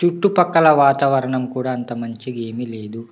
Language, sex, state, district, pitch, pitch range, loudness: Telugu, male, Telangana, Nalgonda, 130 Hz, 115-145 Hz, -18 LUFS